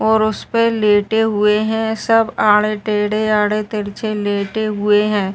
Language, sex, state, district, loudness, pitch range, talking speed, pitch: Hindi, female, Uttar Pradesh, Ghazipur, -16 LUFS, 210-220 Hz, 155 wpm, 215 Hz